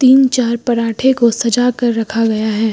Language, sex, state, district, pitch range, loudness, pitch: Hindi, female, Uttar Pradesh, Lucknow, 225-250 Hz, -14 LUFS, 235 Hz